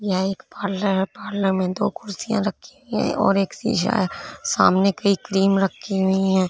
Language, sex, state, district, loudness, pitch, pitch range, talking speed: Hindi, female, Punjab, Fazilka, -22 LUFS, 195 Hz, 190-205 Hz, 185 wpm